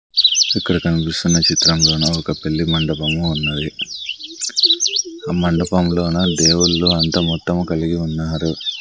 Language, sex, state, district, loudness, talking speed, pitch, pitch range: Telugu, male, Andhra Pradesh, Sri Satya Sai, -16 LUFS, 95 wpm, 85 Hz, 80-90 Hz